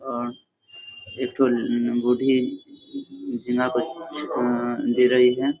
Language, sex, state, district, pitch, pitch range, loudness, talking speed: Hindi, male, Bihar, Darbhanga, 125 Hz, 120-145 Hz, -23 LUFS, 95 wpm